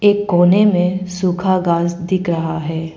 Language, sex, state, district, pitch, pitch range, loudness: Hindi, female, Arunachal Pradesh, Papum Pare, 180 Hz, 170-185 Hz, -16 LUFS